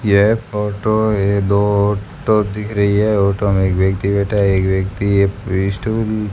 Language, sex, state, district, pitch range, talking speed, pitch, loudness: Hindi, male, Rajasthan, Bikaner, 100-105 Hz, 180 wpm, 100 Hz, -16 LUFS